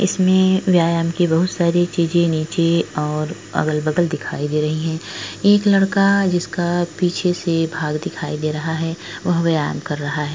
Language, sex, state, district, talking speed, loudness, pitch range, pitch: Hindi, female, Uttar Pradesh, Etah, 160 wpm, -19 LUFS, 155-180 Hz, 170 Hz